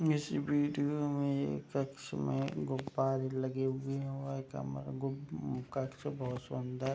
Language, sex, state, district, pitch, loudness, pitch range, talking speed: Hindi, male, Bihar, Madhepura, 135 Hz, -37 LUFS, 125-140 Hz, 145 wpm